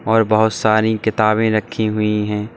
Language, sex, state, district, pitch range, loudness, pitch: Hindi, male, Uttar Pradesh, Saharanpur, 105-110 Hz, -17 LUFS, 110 Hz